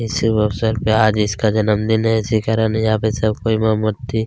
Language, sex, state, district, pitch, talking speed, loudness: Hindi, male, Chhattisgarh, Kabirdham, 110 Hz, 210 wpm, -17 LUFS